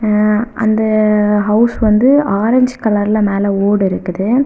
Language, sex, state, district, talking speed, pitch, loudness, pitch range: Tamil, female, Tamil Nadu, Kanyakumari, 120 wpm, 215 Hz, -13 LUFS, 205-225 Hz